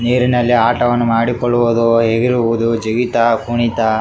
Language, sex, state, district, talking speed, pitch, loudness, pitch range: Kannada, male, Karnataka, Raichur, 105 wpm, 120 Hz, -14 LUFS, 115-120 Hz